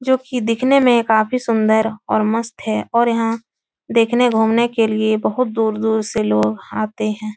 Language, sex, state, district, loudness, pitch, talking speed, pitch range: Hindi, female, Uttar Pradesh, Etah, -17 LUFS, 225 Hz, 170 wpm, 220-235 Hz